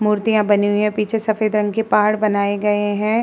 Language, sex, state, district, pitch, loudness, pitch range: Hindi, female, Uttar Pradesh, Muzaffarnagar, 210 Hz, -18 LUFS, 205-215 Hz